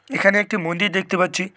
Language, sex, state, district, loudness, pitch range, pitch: Bengali, male, West Bengal, Cooch Behar, -19 LUFS, 180-205 Hz, 190 Hz